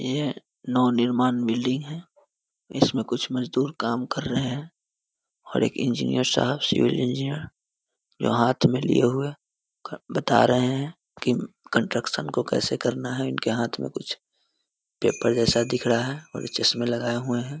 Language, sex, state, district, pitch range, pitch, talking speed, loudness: Hindi, male, Bihar, Muzaffarpur, 120-135 Hz, 125 Hz, 160 wpm, -25 LUFS